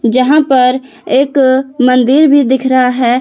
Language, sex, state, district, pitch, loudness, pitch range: Hindi, female, Jharkhand, Palamu, 260 Hz, -10 LUFS, 255-275 Hz